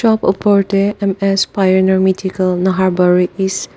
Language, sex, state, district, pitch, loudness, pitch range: Nagamese, female, Nagaland, Dimapur, 190 Hz, -14 LUFS, 185-195 Hz